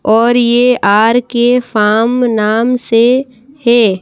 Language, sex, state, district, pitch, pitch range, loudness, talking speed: Hindi, female, Madhya Pradesh, Bhopal, 240 Hz, 225-245 Hz, -11 LUFS, 105 wpm